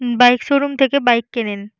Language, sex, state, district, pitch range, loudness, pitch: Bengali, female, Jharkhand, Jamtara, 235-270 Hz, -15 LUFS, 245 Hz